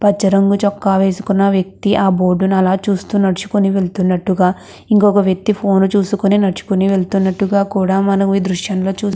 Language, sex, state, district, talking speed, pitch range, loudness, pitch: Telugu, female, Andhra Pradesh, Krishna, 145 wpm, 190-200 Hz, -15 LUFS, 195 Hz